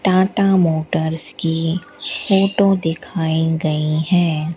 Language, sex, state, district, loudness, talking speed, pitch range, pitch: Hindi, female, Rajasthan, Bikaner, -17 LUFS, 90 wpm, 160-195 Hz, 165 Hz